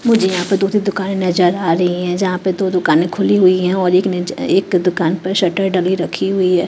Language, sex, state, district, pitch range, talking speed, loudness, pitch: Hindi, female, Chhattisgarh, Raipur, 180-195 Hz, 250 wpm, -15 LUFS, 185 Hz